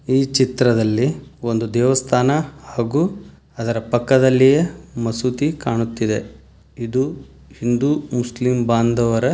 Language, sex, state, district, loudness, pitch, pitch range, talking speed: Kannada, male, Karnataka, Dharwad, -19 LUFS, 125 Hz, 115-135 Hz, 85 wpm